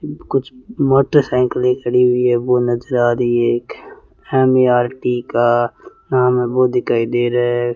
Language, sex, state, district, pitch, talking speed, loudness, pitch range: Hindi, male, Rajasthan, Bikaner, 125 Hz, 155 wpm, -16 LUFS, 120-130 Hz